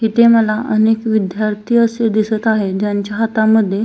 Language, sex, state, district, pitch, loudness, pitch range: Marathi, female, Maharashtra, Solapur, 220 Hz, -15 LUFS, 210-225 Hz